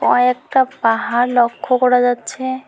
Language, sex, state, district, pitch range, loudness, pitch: Bengali, female, West Bengal, Alipurduar, 240-260 Hz, -16 LUFS, 250 Hz